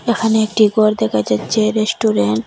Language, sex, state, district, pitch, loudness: Bengali, female, Assam, Hailakandi, 215 Hz, -15 LUFS